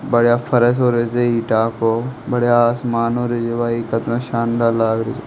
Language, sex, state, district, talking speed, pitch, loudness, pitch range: Hindi, male, Rajasthan, Nagaur, 195 wpm, 120 Hz, -17 LUFS, 115-120 Hz